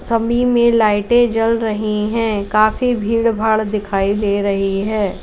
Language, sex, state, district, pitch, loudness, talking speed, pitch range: Hindi, female, Uttar Pradesh, Lalitpur, 215 Hz, -16 LUFS, 150 wpm, 205-230 Hz